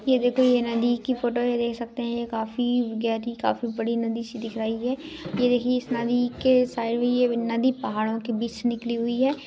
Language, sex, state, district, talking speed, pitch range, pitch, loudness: Hindi, female, Maharashtra, Sindhudurg, 210 wpm, 230-245 Hz, 240 Hz, -25 LUFS